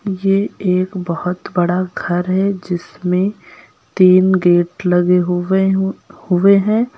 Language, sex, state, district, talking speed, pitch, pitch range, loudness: Hindi, female, Uttar Pradesh, Lucknow, 110 wpm, 185 Hz, 180-195 Hz, -16 LUFS